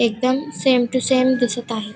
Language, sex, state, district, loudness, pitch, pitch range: Marathi, female, Maharashtra, Pune, -19 LUFS, 255 Hz, 235-260 Hz